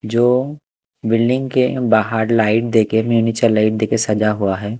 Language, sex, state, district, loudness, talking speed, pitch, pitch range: Hindi, male, Punjab, Kapurthala, -16 LUFS, 150 wpm, 115 Hz, 110-120 Hz